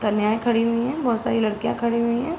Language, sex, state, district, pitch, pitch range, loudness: Hindi, female, Uttar Pradesh, Hamirpur, 235 Hz, 220-240 Hz, -22 LUFS